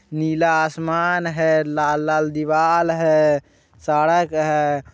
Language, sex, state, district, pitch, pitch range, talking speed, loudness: Hindi, male, Bihar, Muzaffarpur, 155 Hz, 150-165 Hz, 95 wpm, -19 LUFS